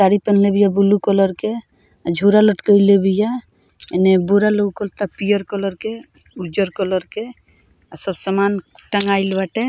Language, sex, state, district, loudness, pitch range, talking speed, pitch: Bhojpuri, female, Bihar, Muzaffarpur, -17 LUFS, 195-210 Hz, 145 wpm, 200 Hz